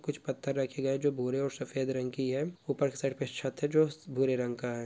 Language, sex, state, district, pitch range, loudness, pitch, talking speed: Hindi, female, Bihar, Purnia, 130-145 Hz, -33 LUFS, 135 Hz, 285 wpm